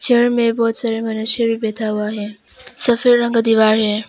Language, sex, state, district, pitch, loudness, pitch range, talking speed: Hindi, female, Arunachal Pradesh, Papum Pare, 225 Hz, -16 LUFS, 220-240 Hz, 205 wpm